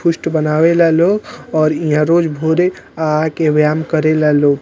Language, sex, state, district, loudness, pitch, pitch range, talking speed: Bhojpuri, male, Bihar, Muzaffarpur, -14 LUFS, 155 Hz, 155-165 Hz, 170 wpm